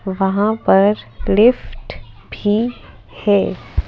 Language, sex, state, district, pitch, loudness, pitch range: Hindi, female, Madhya Pradesh, Bhopal, 205 Hz, -16 LUFS, 195-220 Hz